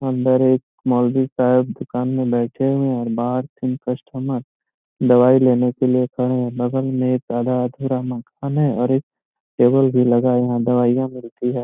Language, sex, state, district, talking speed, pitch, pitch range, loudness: Hindi, male, Bihar, Gopalganj, 175 wpm, 125 Hz, 125-130 Hz, -19 LUFS